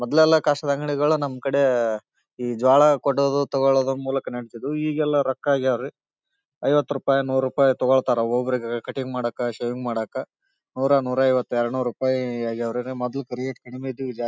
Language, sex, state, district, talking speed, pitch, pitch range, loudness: Kannada, male, Karnataka, Bellary, 145 wpm, 130 Hz, 125-140 Hz, -23 LUFS